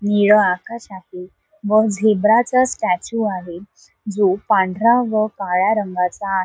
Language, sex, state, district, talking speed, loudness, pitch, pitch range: Marathi, female, Maharashtra, Solapur, 120 wpm, -17 LUFS, 205 Hz, 185-220 Hz